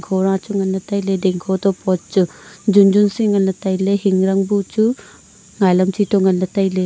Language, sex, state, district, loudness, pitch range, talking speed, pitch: Wancho, female, Arunachal Pradesh, Longding, -17 LUFS, 190-200 Hz, 185 wpm, 195 Hz